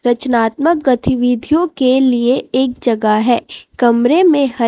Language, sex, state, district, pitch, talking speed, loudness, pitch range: Hindi, female, Chhattisgarh, Raipur, 255 Hz, 130 wpm, -14 LUFS, 240-275 Hz